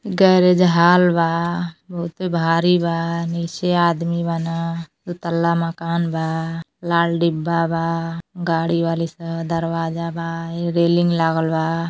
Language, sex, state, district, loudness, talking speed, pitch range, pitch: Bhojpuri, female, Uttar Pradesh, Deoria, -19 LUFS, 115 wpm, 165-170 Hz, 170 Hz